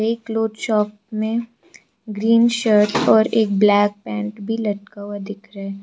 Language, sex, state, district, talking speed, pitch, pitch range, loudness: Hindi, female, Arunachal Pradesh, Lower Dibang Valley, 165 wpm, 210 Hz, 205-225 Hz, -19 LUFS